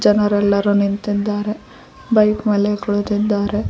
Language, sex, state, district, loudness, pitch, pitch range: Kannada, female, Karnataka, Koppal, -17 LUFS, 205 Hz, 205-210 Hz